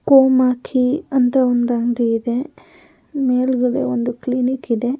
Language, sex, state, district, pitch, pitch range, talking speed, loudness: Kannada, female, Karnataka, Mysore, 250 Hz, 240-265 Hz, 110 wpm, -18 LUFS